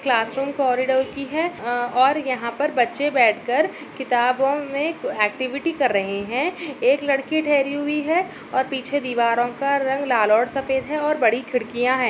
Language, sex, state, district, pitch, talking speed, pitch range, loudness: Hindi, female, Bihar, Darbhanga, 265 Hz, 175 wpm, 245-285 Hz, -21 LUFS